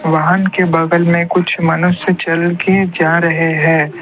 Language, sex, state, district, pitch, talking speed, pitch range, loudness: Hindi, male, Assam, Kamrup Metropolitan, 170 Hz, 165 wpm, 165-180 Hz, -13 LUFS